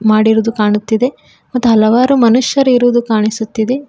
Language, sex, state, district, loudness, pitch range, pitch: Kannada, female, Karnataka, Koppal, -12 LUFS, 220-250 Hz, 230 Hz